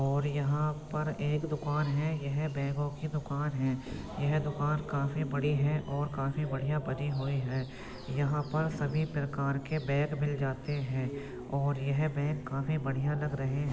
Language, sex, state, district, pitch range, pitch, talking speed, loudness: Hindi, male, Uttar Pradesh, Jyotiba Phule Nagar, 140-150 Hz, 145 Hz, 175 wpm, -33 LUFS